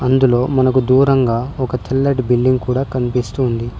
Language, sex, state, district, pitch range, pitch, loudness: Telugu, male, Telangana, Mahabubabad, 125-130 Hz, 130 Hz, -16 LUFS